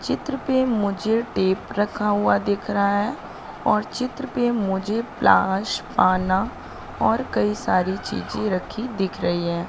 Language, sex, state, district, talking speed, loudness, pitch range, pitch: Hindi, female, Madhya Pradesh, Katni, 140 wpm, -22 LUFS, 190-235 Hz, 205 Hz